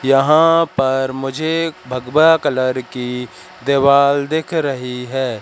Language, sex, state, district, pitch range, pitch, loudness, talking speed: Hindi, male, Madhya Pradesh, Katni, 130-155 Hz, 135 Hz, -16 LUFS, 110 wpm